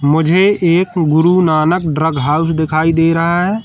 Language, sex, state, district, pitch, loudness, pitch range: Hindi, male, Madhya Pradesh, Katni, 165 Hz, -13 LUFS, 155-175 Hz